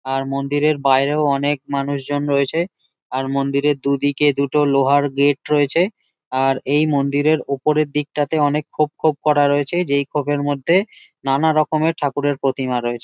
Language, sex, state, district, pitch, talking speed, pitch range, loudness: Bengali, male, West Bengal, Jalpaiguri, 145 Hz, 145 wpm, 140-150 Hz, -19 LUFS